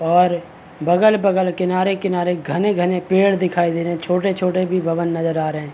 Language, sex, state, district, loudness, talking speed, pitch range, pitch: Hindi, male, Bihar, Saharsa, -18 LUFS, 165 wpm, 170-185 Hz, 180 Hz